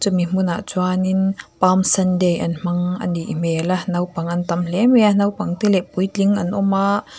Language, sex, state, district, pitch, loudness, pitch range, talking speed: Mizo, female, Mizoram, Aizawl, 185 Hz, -19 LUFS, 175-200 Hz, 215 wpm